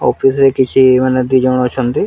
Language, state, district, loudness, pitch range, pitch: Sambalpuri, Odisha, Sambalpur, -12 LUFS, 130-135 Hz, 130 Hz